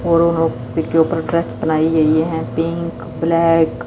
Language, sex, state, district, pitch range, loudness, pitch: Hindi, female, Chandigarh, Chandigarh, 155-165 Hz, -17 LUFS, 165 Hz